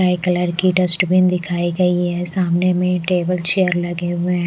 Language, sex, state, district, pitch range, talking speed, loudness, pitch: Hindi, female, Odisha, Malkangiri, 175-180 Hz, 185 wpm, -17 LUFS, 180 Hz